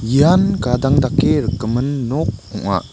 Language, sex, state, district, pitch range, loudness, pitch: Garo, male, Meghalaya, West Garo Hills, 125-150 Hz, -17 LUFS, 135 Hz